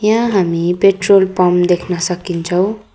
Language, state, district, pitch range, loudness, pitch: Nepali, West Bengal, Darjeeling, 180-195 Hz, -14 LUFS, 185 Hz